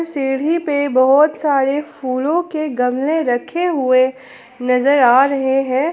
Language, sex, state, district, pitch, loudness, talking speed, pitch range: Hindi, female, Jharkhand, Palamu, 275 Hz, -16 LUFS, 130 wpm, 255-300 Hz